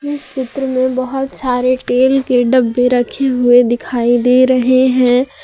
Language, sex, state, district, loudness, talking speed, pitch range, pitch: Hindi, female, Jharkhand, Garhwa, -13 LUFS, 155 wpm, 245-260 Hz, 255 Hz